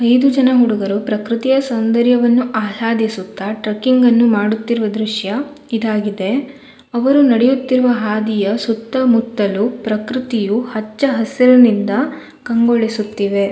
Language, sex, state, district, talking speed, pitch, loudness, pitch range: Kannada, female, Karnataka, Shimoga, 85 wpm, 230 Hz, -15 LUFS, 215-255 Hz